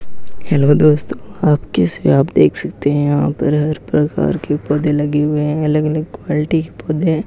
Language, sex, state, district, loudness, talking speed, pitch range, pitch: Hindi, male, Rajasthan, Bikaner, -16 LUFS, 200 wpm, 145-155 Hz, 150 Hz